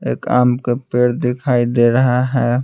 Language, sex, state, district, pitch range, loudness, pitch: Hindi, male, Bihar, Patna, 120-125 Hz, -16 LUFS, 125 Hz